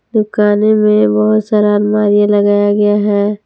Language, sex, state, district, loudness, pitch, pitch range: Hindi, female, Jharkhand, Palamu, -11 LUFS, 205 Hz, 205-210 Hz